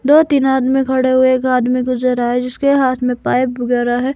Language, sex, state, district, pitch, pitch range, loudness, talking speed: Hindi, female, Himachal Pradesh, Shimla, 255 Hz, 250-265 Hz, -15 LUFS, 230 wpm